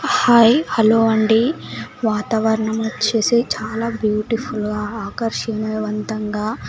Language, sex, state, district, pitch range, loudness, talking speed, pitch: Telugu, female, Andhra Pradesh, Sri Satya Sai, 215-230 Hz, -18 LUFS, 70 wpm, 220 Hz